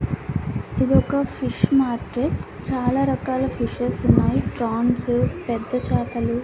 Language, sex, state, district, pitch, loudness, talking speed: Telugu, female, Andhra Pradesh, Annamaya, 225 Hz, -22 LUFS, 95 wpm